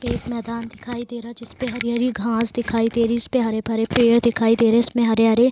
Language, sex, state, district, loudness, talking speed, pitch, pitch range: Hindi, female, Bihar, Saran, -20 LUFS, 230 wpm, 235 Hz, 230-240 Hz